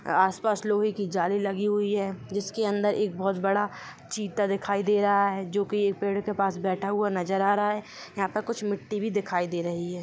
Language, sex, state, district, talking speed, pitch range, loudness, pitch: Hindi, female, Jharkhand, Jamtara, 220 wpm, 195-210 Hz, -27 LUFS, 200 Hz